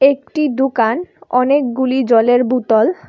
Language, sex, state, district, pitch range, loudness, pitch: Bengali, female, Tripura, West Tripura, 245-285 Hz, -15 LUFS, 260 Hz